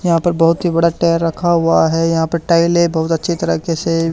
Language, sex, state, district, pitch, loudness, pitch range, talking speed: Hindi, male, Haryana, Charkhi Dadri, 165 Hz, -15 LUFS, 165-170 Hz, 230 wpm